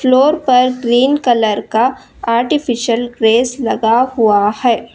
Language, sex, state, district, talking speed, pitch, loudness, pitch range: Hindi, female, Karnataka, Bangalore, 120 wpm, 240 Hz, -13 LUFS, 230-255 Hz